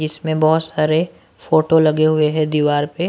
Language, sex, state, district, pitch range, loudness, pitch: Hindi, male, Maharashtra, Washim, 155-160 Hz, -16 LUFS, 155 Hz